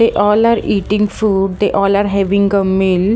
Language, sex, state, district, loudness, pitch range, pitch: English, female, Haryana, Jhajjar, -14 LUFS, 195-210 Hz, 200 Hz